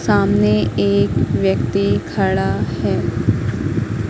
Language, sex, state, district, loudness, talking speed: Hindi, female, Madhya Pradesh, Katni, -18 LUFS, 75 wpm